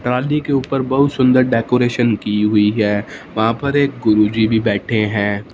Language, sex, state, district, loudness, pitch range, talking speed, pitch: Hindi, male, Punjab, Fazilka, -16 LUFS, 105-130 Hz, 175 wpm, 115 Hz